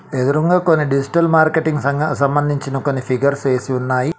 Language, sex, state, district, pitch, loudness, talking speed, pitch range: Telugu, male, Telangana, Mahabubabad, 140 Hz, -17 LUFS, 145 wpm, 135-155 Hz